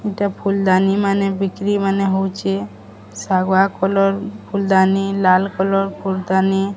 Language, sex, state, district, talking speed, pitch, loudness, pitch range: Odia, female, Odisha, Sambalpur, 135 wpm, 195 Hz, -17 LUFS, 190-195 Hz